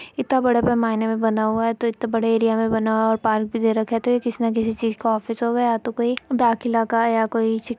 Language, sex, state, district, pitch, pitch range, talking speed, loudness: Hindi, female, Uttar Pradesh, Etah, 230 Hz, 225-235 Hz, 295 wpm, -21 LUFS